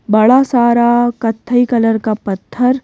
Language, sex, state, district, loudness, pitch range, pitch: Hindi, female, Madhya Pradesh, Bhopal, -13 LUFS, 225-245 Hz, 235 Hz